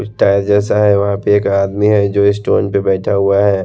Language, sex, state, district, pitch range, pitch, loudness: Hindi, male, Haryana, Rohtak, 100-105 Hz, 100 Hz, -13 LUFS